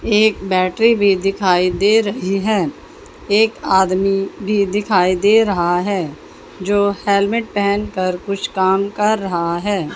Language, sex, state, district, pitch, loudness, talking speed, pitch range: Hindi, female, Haryana, Jhajjar, 200 Hz, -16 LUFS, 140 wpm, 185-205 Hz